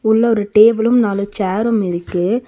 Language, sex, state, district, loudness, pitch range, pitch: Tamil, female, Tamil Nadu, Nilgiris, -15 LUFS, 200-230 Hz, 220 Hz